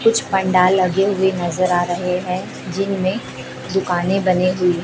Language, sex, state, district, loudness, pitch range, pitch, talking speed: Hindi, female, Chhattisgarh, Raipur, -18 LUFS, 180-190 Hz, 185 Hz, 150 wpm